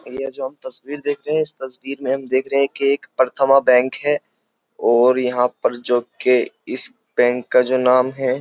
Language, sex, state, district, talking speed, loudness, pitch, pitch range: Hindi, male, Uttar Pradesh, Jyotiba Phule Nagar, 205 wpm, -18 LUFS, 130 Hz, 125-140 Hz